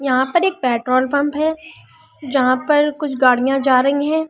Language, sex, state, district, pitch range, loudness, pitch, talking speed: Hindi, female, Delhi, New Delhi, 255-300 Hz, -17 LUFS, 275 Hz, 180 wpm